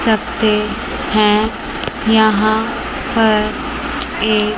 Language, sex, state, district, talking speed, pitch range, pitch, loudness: Hindi, male, Chandigarh, Chandigarh, 65 wpm, 215-225 Hz, 220 Hz, -16 LUFS